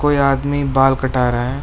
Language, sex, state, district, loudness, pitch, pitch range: Hindi, male, West Bengal, Alipurduar, -16 LUFS, 135 Hz, 130-140 Hz